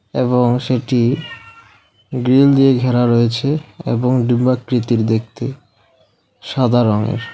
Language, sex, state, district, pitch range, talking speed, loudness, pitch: Bengali, male, West Bengal, Alipurduar, 115-130 Hz, 90 wpm, -16 LUFS, 120 Hz